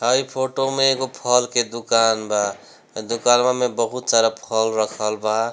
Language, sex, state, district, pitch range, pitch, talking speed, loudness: Bhojpuri, male, Bihar, Gopalganj, 110-125 Hz, 115 Hz, 175 wpm, -20 LUFS